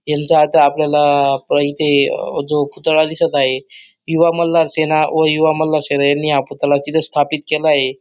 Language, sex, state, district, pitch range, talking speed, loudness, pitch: Marathi, male, Maharashtra, Dhule, 145-155 Hz, 165 wpm, -15 LUFS, 150 Hz